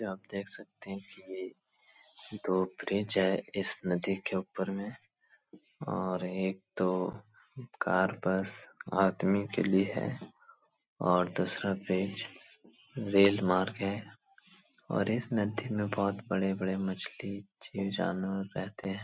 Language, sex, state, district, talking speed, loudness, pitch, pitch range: Hindi, male, Uttar Pradesh, Etah, 125 wpm, -33 LUFS, 95 Hz, 95-100 Hz